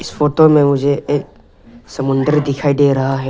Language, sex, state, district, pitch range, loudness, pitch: Hindi, male, Arunachal Pradesh, Lower Dibang Valley, 135-145 Hz, -14 LUFS, 140 Hz